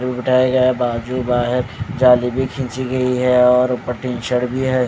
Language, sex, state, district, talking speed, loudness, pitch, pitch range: Hindi, male, Odisha, Khordha, 170 wpm, -17 LUFS, 125 Hz, 125-130 Hz